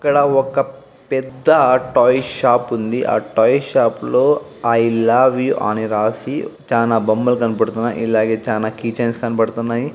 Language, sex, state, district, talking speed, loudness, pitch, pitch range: Telugu, male, Andhra Pradesh, Guntur, 135 wpm, -17 LUFS, 115 Hz, 115-130 Hz